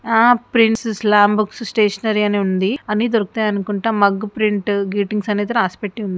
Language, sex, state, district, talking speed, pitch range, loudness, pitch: Telugu, female, Andhra Pradesh, Guntur, 165 wpm, 205-225 Hz, -17 LUFS, 210 Hz